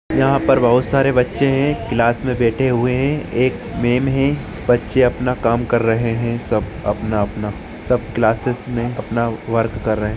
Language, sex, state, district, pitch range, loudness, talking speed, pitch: Hindi, male, Maharashtra, Solapur, 115-125 Hz, -18 LUFS, 175 wpm, 120 Hz